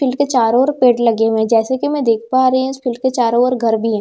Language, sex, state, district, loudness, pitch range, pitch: Hindi, female, Bihar, Katihar, -15 LUFS, 230-260 Hz, 245 Hz